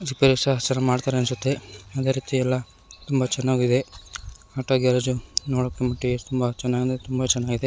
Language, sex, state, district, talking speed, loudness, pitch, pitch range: Kannada, male, Karnataka, Shimoga, 135 wpm, -24 LUFS, 125 Hz, 125-130 Hz